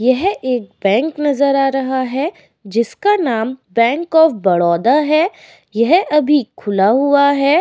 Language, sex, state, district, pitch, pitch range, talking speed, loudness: Hindi, female, Uttar Pradesh, Etah, 270 Hz, 230-300 Hz, 140 wpm, -15 LUFS